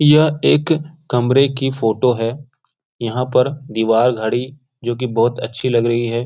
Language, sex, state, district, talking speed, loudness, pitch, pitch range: Hindi, male, Bihar, Jahanabad, 165 wpm, -17 LUFS, 125 Hz, 115-140 Hz